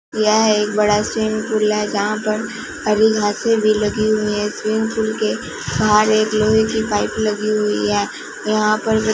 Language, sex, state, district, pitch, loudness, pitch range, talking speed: Hindi, female, Punjab, Fazilka, 215 Hz, -18 LUFS, 210-220 Hz, 175 wpm